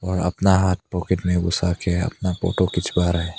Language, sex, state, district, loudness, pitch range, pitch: Hindi, male, Arunachal Pradesh, Papum Pare, -21 LUFS, 90-95 Hz, 90 Hz